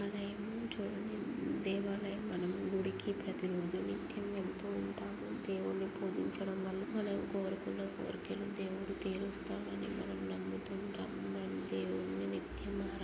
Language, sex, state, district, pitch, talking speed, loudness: Telugu, male, Andhra Pradesh, Guntur, 190 Hz, 90 wpm, -40 LUFS